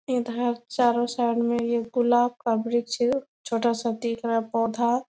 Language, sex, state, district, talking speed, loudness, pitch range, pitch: Hindi, female, Bihar, Bhagalpur, 165 wpm, -25 LUFS, 235-240 Hz, 235 Hz